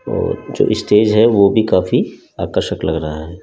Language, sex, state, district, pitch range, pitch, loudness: Hindi, male, Delhi, New Delhi, 80-110 Hz, 100 Hz, -15 LUFS